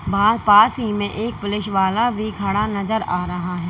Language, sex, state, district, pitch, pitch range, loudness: Hindi, female, Uttar Pradesh, Lalitpur, 205 Hz, 195-220 Hz, -19 LUFS